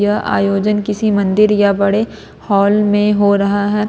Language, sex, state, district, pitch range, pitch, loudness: Hindi, female, Jharkhand, Ranchi, 200-210 Hz, 205 Hz, -14 LUFS